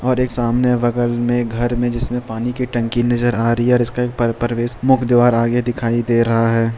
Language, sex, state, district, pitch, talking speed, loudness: Hindi, male, Bihar, Jamui, 120 Hz, 230 wpm, -17 LUFS